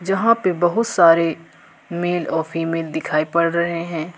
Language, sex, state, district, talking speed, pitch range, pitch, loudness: Hindi, female, Jharkhand, Ranchi, 160 wpm, 165-175 Hz, 170 Hz, -19 LUFS